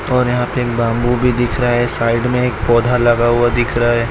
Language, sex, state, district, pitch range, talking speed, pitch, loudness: Hindi, male, Gujarat, Valsad, 120-125 Hz, 265 wpm, 120 Hz, -15 LUFS